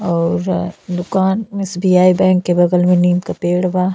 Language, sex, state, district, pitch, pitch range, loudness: Bhojpuri, female, Uttar Pradesh, Ghazipur, 180 Hz, 175-185 Hz, -15 LUFS